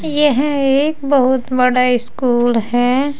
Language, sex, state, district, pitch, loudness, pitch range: Hindi, female, Uttar Pradesh, Saharanpur, 260 Hz, -15 LUFS, 245-285 Hz